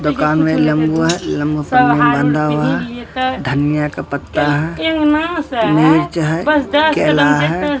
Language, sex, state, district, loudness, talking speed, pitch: Hindi, male, Bihar, Katihar, -15 LUFS, 140 wpm, 155 Hz